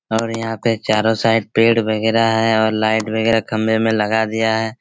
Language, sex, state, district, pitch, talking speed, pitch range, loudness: Hindi, male, Chhattisgarh, Raigarh, 110 Hz, 200 wpm, 110-115 Hz, -17 LUFS